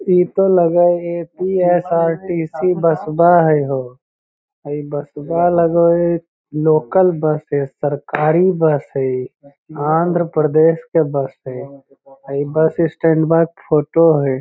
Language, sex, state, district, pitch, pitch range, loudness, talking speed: Magahi, male, Bihar, Lakhisarai, 160 Hz, 145-170 Hz, -16 LUFS, 135 wpm